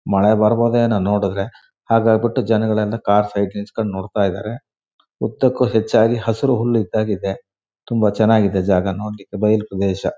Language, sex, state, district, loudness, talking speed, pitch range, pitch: Kannada, male, Karnataka, Shimoga, -18 LUFS, 135 wpm, 100-115 Hz, 105 Hz